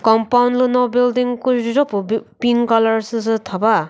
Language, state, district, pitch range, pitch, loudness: Chakhesang, Nagaland, Dimapur, 225-245 Hz, 230 Hz, -17 LUFS